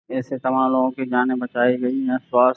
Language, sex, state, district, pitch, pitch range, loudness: Hindi, male, Uttar Pradesh, Gorakhpur, 130 Hz, 125-130 Hz, -21 LUFS